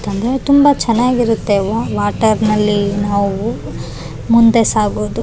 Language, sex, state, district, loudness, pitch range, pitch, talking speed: Kannada, female, Karnataka, Raichur, -14 LUFS, 200-230 Hz, 215 Hz, 170 wpm